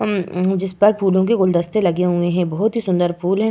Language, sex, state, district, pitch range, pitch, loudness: Hindi, female, Uttar Pradesh, Varanasi, 180-210 Hz, 190 Hz, -18 LUFS